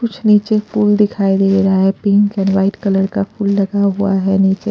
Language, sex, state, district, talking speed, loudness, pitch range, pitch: Hindi, female, Punjab, Pathankot, 215 wpm, -14 LUFS, 195-210 Hz, 200 Hz